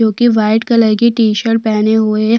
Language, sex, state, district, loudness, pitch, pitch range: Hindi, female, Chhattisgarh, Sukma, -12 LUFS, 220 Hz, 215-230 Hz